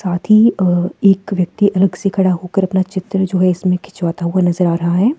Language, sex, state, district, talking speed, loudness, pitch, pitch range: Hindi, female, Himachal Pradesh, Shimla, 230 wpm, -15 LUFS, 185 Hz, 180-195 Hz